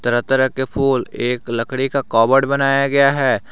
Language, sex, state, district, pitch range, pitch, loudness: Hindi, male, Jharkhand, Garhwa, 120-135 Hz, 130 Hz, -17 LUFS